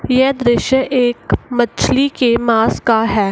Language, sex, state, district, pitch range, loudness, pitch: Hindi, female, Bihar, Gaya, 230-260 Hz, -15 LUFS, 240 Hz